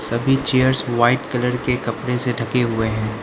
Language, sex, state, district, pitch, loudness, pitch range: Hindi, male, Arunachal Pradesh, Lower Dibang Valley, 125 Hz, -19 LUFS, 115-125 Hz